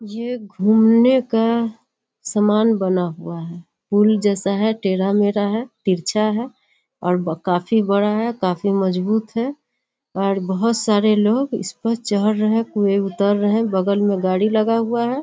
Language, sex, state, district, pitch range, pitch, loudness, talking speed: Hindi, female, Bihar, Kishanganj, 195-230 Hz, 210 Hz, -19 LUFS, 140 wpm